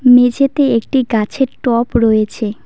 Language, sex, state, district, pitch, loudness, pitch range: Bengali, female, West Bengal, Cooch Behar, 240 Hz, -14 LUFS, 225-265 Hz